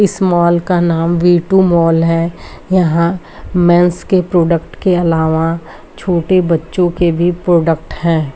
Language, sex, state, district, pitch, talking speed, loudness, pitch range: Hindi, female, Bihar, Kishanganj, 170 Hz, 145 wpm, -13 LUFS, 165-180 Hz